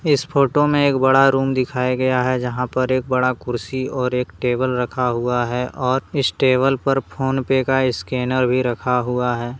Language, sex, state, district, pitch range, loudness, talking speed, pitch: Hindi, male, Jharkhand, Deoghar, 125-135 Hz, -19 LUFS, 200 wpm, 130 Hz